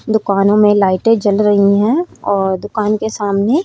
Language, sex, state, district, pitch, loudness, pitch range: Hindi, female, Haryana, Rohtak, 205 Hz, -14 LUFS, 200-220 Hz